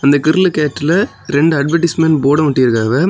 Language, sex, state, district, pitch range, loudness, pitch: Tamil, male, Tamil Nadu, Kanyakumari, 140-170 Hz, -13 LUFS, 155 Hz